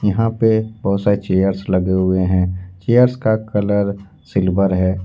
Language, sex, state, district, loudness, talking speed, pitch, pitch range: Hindi, male, Jharkhand, Ranchi, -17 LUFS, 155 wpm, 100 Hz, 95-110 Hz